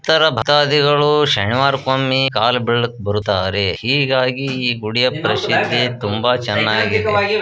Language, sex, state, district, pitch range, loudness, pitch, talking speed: Kannada, male, Karnataka, Bijapur, 110-140 Hz, -16 LUFS, 125 Hz, 95 wpm